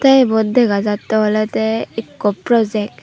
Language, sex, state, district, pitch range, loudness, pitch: Chakma, female, Tripura, Unakoti, 210-230 Hz, -16 LUFS, 220 Hz